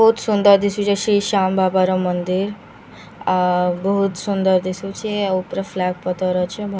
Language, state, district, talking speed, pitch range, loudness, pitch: Sambalpuri, Odisha, Sambalpur, 160 wpm, 185-200 Hz, -19 LUFS, 190 Hz